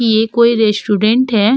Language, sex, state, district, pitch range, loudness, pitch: Hindi, female, Uttar Pradesh, Hamirpur, 215-235 Hz, -13 LUFS, 225 Hz